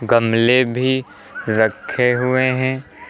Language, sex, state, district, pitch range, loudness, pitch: Hindi, male, Uttar Pradesh, Lucknow, 115-130 Hz, -17 LUFS, 125 Hz